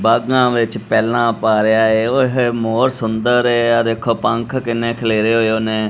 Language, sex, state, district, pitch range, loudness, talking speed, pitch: Punjabi, male, Punjab, Kapurthala, 110-120 Hz, -16 LUFS, 185 wpm, 115 Hz